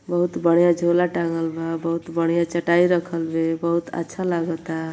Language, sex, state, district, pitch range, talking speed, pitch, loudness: Bhojpuri, female, Uttar Pradesh, Ghazipur, 165-170 Hz, 160 wpm, 170 Hz, -22 LUFS